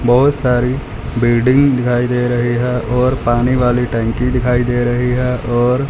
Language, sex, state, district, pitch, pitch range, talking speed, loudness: Hindi, male, Punjab, Fazilka, 125 Hz, 120-125 Hz, 160 wpm, -15 LUFS